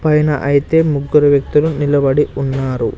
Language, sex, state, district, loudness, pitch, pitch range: Telugu, male, Andhra Pradesh, Sri Satya Sai, -14 LUFS, 145 Hz, 140-150 Hz